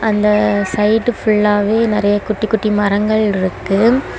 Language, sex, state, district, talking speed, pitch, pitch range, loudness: Tamil, female, Tamil Nadu, Kanyakumari, 115 wpm, 210 Hz, 205-220 Hz, -15 LUFS